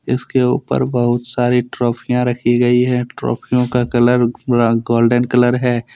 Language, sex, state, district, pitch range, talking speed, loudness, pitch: Hindi, male, Jharkhand, Deoghar, 120-125 Hz, 140 wpm, -16 LUFS, 120 Hz